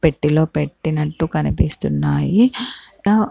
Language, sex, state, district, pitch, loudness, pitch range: Telugu, female, Andhra Pradesh, Chittoor, 155 Hz, -19 LUFS, 150-210 Hz